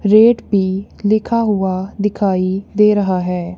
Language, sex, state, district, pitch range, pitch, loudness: Hindi, female, Punjab, Kapurthala, 190-210 Hz, 200 Hz, -16 LUFS